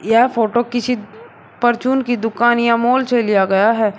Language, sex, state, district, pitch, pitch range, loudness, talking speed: Hindi, male, Uttar Pradesh, Shamli, 235 Hz, 220-245 Hz, -16 LUFS, 180 wpm